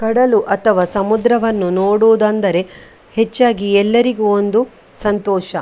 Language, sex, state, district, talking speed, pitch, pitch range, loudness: Kannada, female, Karnataka, Dakshina Kannada, 95 wpm, 215 Hz, 200-225 Hz, -15 LUFS